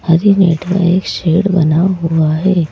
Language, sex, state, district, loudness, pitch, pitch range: Hindi, male, Madhya Pradesh, Bhopal, -13 LUFS, 175 Hz, 165-185 Hz